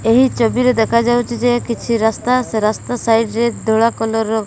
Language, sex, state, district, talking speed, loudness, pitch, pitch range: Odia, female, Odisha, Malkangiri, 190 wpm, -16 LUFS, 230 Hz, 225-240 Hz